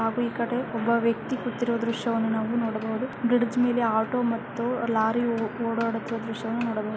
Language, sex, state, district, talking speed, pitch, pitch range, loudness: Kannada, female, Karnataka, Bellary, 140 wpm, 230 Hz, 225-240 Hz, -26 LUFS